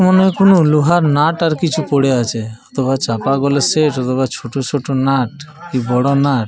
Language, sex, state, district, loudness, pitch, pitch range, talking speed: Bengali, male, Jharkhand, Jamtara, -15 LUFS, 140 Hz, 130-155 Hz, 195 wpm